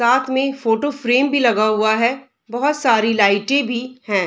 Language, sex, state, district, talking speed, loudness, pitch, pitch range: Hindi, female, Bihar, Darbhanga, 180 wpm, -17 LUFS, 240 Hz, 220-265 Hz